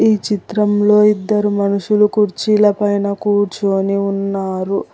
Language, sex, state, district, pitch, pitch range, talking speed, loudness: Telugu, female, Telangana, Hyderabad, 205 Hz, 200-210 Hz, 95 wpm, -15 LUFS